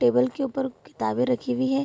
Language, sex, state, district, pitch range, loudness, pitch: Hindi, female, Bihar, Vaishali, 250-270 Hz, -26 LUFS, 255 Hz